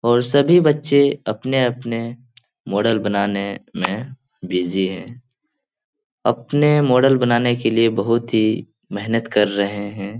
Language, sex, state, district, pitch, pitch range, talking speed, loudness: Hindi, male, Bihar, Lakhisarai, 120 Hz, 105-135 Hz, 120 wpm, -19 LUFS